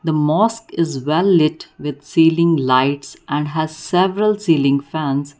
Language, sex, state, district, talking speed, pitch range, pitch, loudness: English, female, Karnataka, Bangalore, 145 wpm, 145-165 Hz, 155 Hz, -17 LUFS